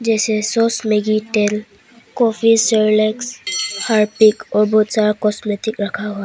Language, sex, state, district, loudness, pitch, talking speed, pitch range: Hindi, female, Arunachal Pradesh, Papum Pare, -16 LUFS, 215 Hz, 155 wpm, 210-225 Hz